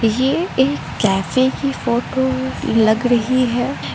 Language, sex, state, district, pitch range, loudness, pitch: Hindi, female, Arunachal Pradesh, Lower Dibang Valley, 235-260 Hz, -18 LUFS, 255 Hz